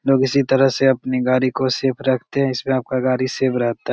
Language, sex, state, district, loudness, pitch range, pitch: Hindi, male, Bihar, Begusarai, -19 LUFS, 130-135 Hz, 130 Hz